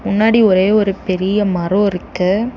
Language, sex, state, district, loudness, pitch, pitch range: Tamil, female, Tamil Nadu, Chennai, -15 LUFS, 200 Hz, 185-210 Hz